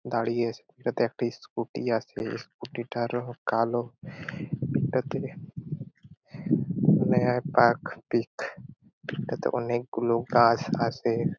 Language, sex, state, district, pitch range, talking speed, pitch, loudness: Bengali, male, West Bengal, Purulia, 120-150 Hz, 85 wpm, 120 Hz, -28 LUFS